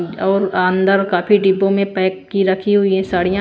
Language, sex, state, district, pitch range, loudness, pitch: Hindi, female, Bihar, Patna, 185-195 Hz, -16 LUFS, 190 Hz